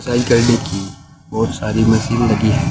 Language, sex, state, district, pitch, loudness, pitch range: Hindi, male, Uttar Pradesh, Saharanpur, 115 Hz, -16 LUFS, 110-120 Hz